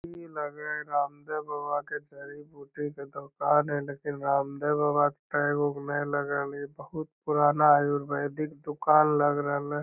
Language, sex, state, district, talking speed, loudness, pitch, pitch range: Magahi, male, Bihar, Lakhisarai, 165 wpm, -28 LUFS, 145 Hz, 145-150 Hz